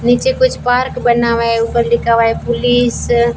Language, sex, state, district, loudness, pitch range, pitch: Hindi, female, Rajasthan, Bikaner, -13 LUFS, 235-245 Hz, 235 Hz